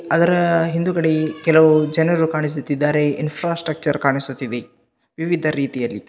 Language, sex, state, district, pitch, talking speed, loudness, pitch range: Kannada, male, Karnataka, Bidar, 155 Hz, 90 wpm, -18 LUFS, 145-165 Hz